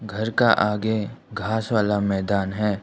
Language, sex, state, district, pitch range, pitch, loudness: Hindi, male, Arunachal Pradesh, Lower Dibang Valley, 105-110 Hz, 105 Hz, -23 LUFS